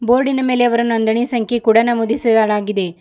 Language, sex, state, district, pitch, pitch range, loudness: Kannada, female, Karnataka, Bidar, 230 Hz, 220-240 Hz, -15 LUFS